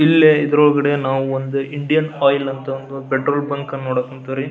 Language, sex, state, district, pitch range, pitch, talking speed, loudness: Kannada, male, Karnataka, Belgaum, 135-145 Hz, 140 Hz, 160 wpm, -18 LUFS